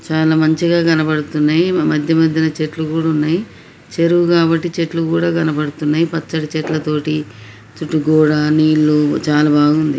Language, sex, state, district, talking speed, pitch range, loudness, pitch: Telugu, male, Telangana, Nalgonda, 125 wpm, 150-165 Hz, -15 LUFS, 155 Hz